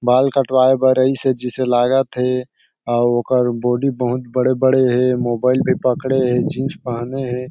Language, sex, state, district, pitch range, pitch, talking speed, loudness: Chhattisgarhi, male, Chhattisgarh, Sarguja, 125-130 Hz, 125 Hz, 185 wpm, -17 LUFS